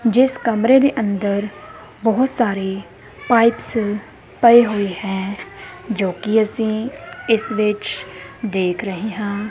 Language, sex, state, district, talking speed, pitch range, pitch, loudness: Punjabi, female, Punjab, Kapurthala, 115 wpm, 200-230 Hz, 215 Hz, -18 LUFS